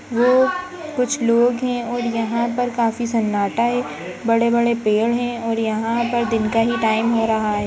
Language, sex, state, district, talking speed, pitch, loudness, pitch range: Hindi, female, Uttar Pradesh, Jyotiba Phule Nagar, 185 wpm, 235 Hz, -19 LUFS, 225-240 Hz